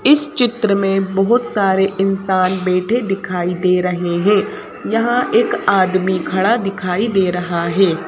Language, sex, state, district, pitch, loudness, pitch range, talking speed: Hindi, female, Madhya Pradesh, Bhopal, 195 Hz, -16 LUFS, 185-210 Hz, 140 wpm